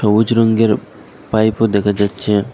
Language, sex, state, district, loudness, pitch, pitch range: Bengali, male, Assam, Hailakandi, -15 LUFS, 105 Hz, 100-110 Hz